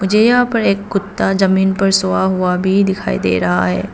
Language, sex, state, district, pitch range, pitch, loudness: Hindi, female, Arunachal Pradesh, Papum Pare, 180-200 Hz, 195 Hz, -15 LUFS